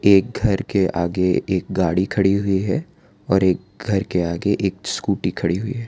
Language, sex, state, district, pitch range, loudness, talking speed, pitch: Hindi, male, Gujarat, Valsad, 90-100 Hz, -20 LUFS, 195 wpm, 95 Hz